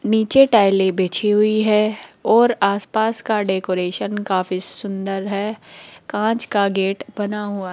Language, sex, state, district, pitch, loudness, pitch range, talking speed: Hindi, female, Rajasthan, Jaipur, 205 Hz, -19 LUFS, 195-220 Hz, 140 wpm